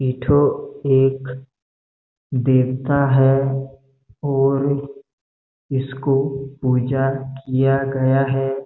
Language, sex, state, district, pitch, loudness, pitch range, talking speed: Hindi, male, Chhattisgarh, Bastar, 135 Hz, -19 LUFS, 130-135 Hz, 75 wpm